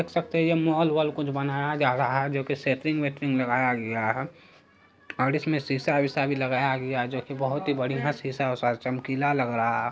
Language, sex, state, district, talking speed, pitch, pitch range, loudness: Hindi, male, Bihar, Araria, 220 wpm, 140 Hz, 130-150 Hz, -26 LUFS